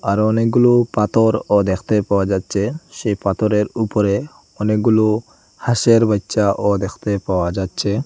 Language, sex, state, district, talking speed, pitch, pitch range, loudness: Bengali, male, Assam, Hailakandi, 120 wpm, 105 Hz, 100-110 Hz, -17 LUFS